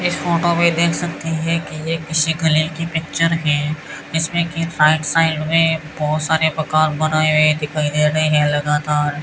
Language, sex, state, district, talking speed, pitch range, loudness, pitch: Hindi, male, Rajasthan, Bikaner, 190 wpm, 155-165 Hz, -17 LUFS, 160 Hz